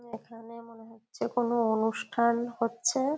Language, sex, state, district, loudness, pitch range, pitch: Bengali, female, West Bengal, Kolkata, -29 LUFS, 225-240 Hz, 235 Hz